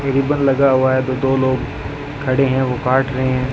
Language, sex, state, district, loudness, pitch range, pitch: Hindi, male, Rajasthan, Bikaner, -17 LUFS, 130-135 Hz, 130 Hz